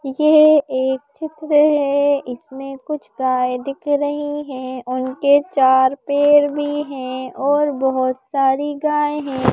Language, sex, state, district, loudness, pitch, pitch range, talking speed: Hindi, female, Madhya Pradesh, Bhopal, -18 LUFS, 280 Hz, 260-295 Hz, 125 wpm